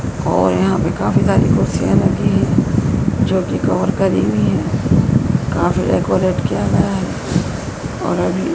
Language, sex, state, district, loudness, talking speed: Hindi, female, Madhya Pradesh, Dhar, -16 LUFS, 150 wpm